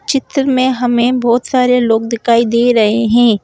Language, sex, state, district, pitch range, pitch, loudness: Hindi, female, Madhya Pradesh, Bhopal, 230-255 Hz, 240 Hz, -12 LUFS